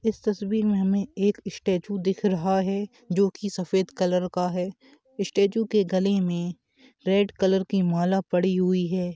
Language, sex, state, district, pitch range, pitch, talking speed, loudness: Bhojpuri, male, Uttar Pradesh, Gorakhpur, 185-205 Hz, 195 Hz, 170 wpm, -25 LUFS